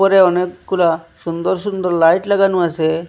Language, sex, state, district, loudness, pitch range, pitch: Bengali, male, Assam, Hailakandi, -16 LUFS, 165-190 Hz, 175 Hz